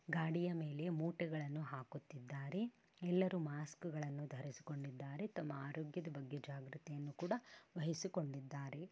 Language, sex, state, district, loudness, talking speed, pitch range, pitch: Kannada, female, Karnataka, Bellary, -45 LUFS, 95 wpm, 140-170 Hz, 155 Hz